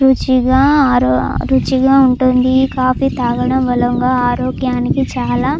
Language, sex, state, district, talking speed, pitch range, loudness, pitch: Telugu, female, Andhra Pradesh, Chittoor, 120 wpm, 250-265 Hz, -13 LUFS, 255 Hz